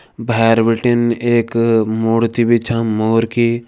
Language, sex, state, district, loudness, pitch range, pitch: Kumaoni, male, Uttarakhand, Tehri Garhwal, -15 LUFS, 115-120 Hz, 115 Hz